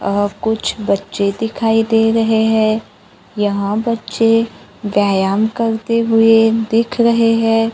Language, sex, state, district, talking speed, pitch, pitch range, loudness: Hindi, female, Maharashtra, Gondia, 115 wpm, 225 Hz, 210-225 Hz, -15 LUFS